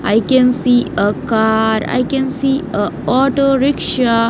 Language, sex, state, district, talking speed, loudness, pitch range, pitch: English, female, Haryana, Jhajjar, 155 wpm, -15 LUFS, 225-270 Hz, 250 Hz